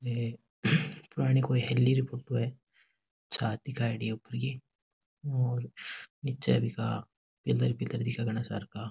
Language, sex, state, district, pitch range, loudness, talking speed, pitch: Marwari, male, Rajasthan, Nagaur, 115-130 Hz, -32 LUFS, 140 wpm, 120 Hz